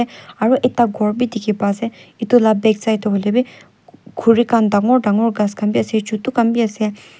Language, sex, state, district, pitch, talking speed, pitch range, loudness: Nagamese, female, Nagaland, Kohima, 220 Hz, 185 wpm, 210-240 Hz, -17 LUFS